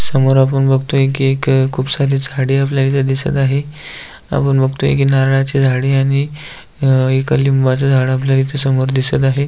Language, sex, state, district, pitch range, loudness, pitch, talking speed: Marathi, male, Maharashtra, Aurangabad, 135-140 Hz, -14 LUFS, 135 Hz, 170 wpm